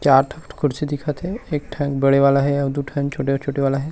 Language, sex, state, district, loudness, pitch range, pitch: Chhattisgarhi, male, Chhattisgarh, Rajnandgaon, -20 LUFS, 140-150 Hz, 140 Hz